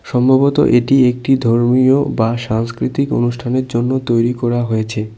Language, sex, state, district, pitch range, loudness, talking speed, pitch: Bengali, male, West Bengal, Cooch Behar, 115-130 Hz, -15 LUFS, 130 wpm, 120 Hz